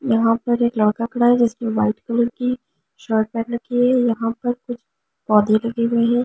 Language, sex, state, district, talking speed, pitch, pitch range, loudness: Hindi, female, Delhi, New Delhi, 220 wpm, 235 Hz, 225-245 Hz, -19 LUFS